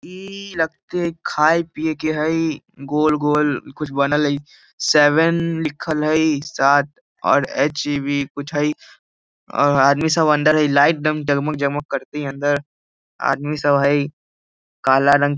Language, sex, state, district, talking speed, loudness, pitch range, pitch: Hindi, male, Bihar, Jahanabad, 135 wpm, -19 LUFS, 140-155 Hz, 145 Hz